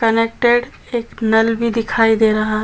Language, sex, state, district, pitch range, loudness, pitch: Hindi, female, Chhattisgarh, Balrampur, 220-230 Hz, -16 LUFS, 225 Hz